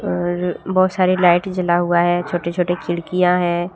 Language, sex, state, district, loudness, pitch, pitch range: Hindi, female, Jharkhand, Deoghar, -18 LUFS, 175 Hz, 175-185 Hz